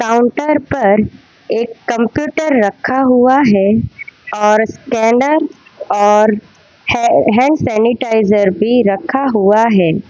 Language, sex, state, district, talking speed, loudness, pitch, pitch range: Hindi, female, Gujarat, Valsad, 100 wpm, -13 LUFS, 230 Hz, 210-265 Hz